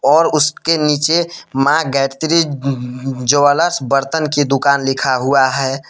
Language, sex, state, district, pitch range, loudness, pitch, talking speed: Hindi, male, Jharkhand, Palamu, 135-155 Hz, -15 LUFS, 140 Hz, 130 wpm